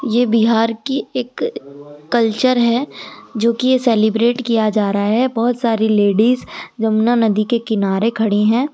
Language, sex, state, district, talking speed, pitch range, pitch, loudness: Hindi, female, Delhi, New Delhi, 160 wpm, 215-240 Hz, 225 Hz, -16 LUFS